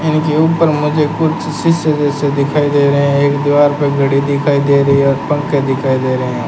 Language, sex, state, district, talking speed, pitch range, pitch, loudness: Hindi, male, Rajasthan, Bikaner, 220 wpm, 140-150 Hz, 145 Hz, -13 LUFS